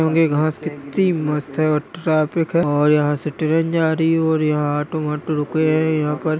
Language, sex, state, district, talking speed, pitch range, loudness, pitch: Hindi, male, Chhattisgarh, Korba, 225 wpm, 150-160 Hz, -19 LUFS, 155 Hz